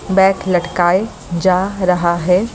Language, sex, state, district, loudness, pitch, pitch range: Hindi, male, Delhi, New Delhi, -15 LUFS, 185 Hz, 175-190 Hz